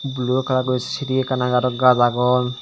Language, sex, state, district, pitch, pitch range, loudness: Chakma, male, Tripura, Dhalai, 125 Hz, 125-130 Hz, -19 LUFS